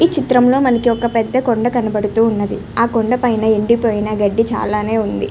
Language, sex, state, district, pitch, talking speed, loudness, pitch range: Telugu, female, Andhra Pradesh, Srikakulam, 230 Hz, 170 wpm, -15 LUFS, 220-245 Hz